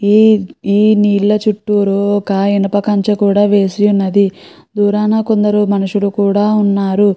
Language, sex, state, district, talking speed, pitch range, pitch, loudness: Telugu, female, Andhra Pradesh, Chittoor, 115 wpm, 200-210 Hz, 205 Hz, -13 LUFS